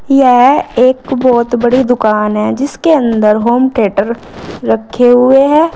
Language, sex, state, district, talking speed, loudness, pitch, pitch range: Hindi, female, Uttar Pradesh, Saharanpur, 125 wpm, -10 LUFS, 245 Hz, 230-265 Hz